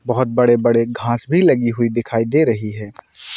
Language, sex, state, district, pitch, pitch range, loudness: Hindi, male, Maharashtra, Sindhudurg, 120 Hz, 115-125 Hz, -16 LUFS